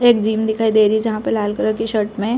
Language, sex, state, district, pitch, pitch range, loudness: Hindi, female, Chhattisgarh, Bilaspur, 220 Hz, 215-225 Hz, -17 LUFS